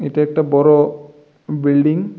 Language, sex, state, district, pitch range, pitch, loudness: Bengali, male, Tripura, West Tripura, 145-150 Hz, 150 Hz, -15 LUFS